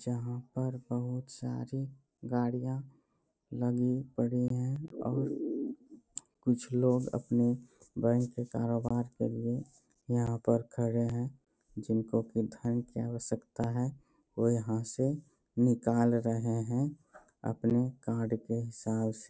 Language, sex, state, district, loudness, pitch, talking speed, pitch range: Hindi, male, Bihar, Jahanabad, -33 LUFS, 120 Hz, 120 wpm, 115-130 Hz